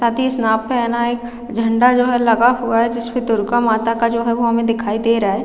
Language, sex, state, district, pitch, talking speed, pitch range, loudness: Hindi, female, Chhattisgarh, Raigarh, 235 Hz, 265 wpm, 230-240 Hz, -17 LUFS